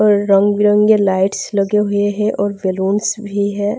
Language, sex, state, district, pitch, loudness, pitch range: Hindi, female, Bihar, Darbhanga, 205 Hz, -15 LUFS, 200-210 Hz